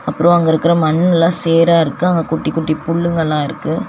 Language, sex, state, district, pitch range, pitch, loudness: Tamil, female, Tamil Nadu, Chennai, 160-170 Hz, 165 Hz, -14 LUFS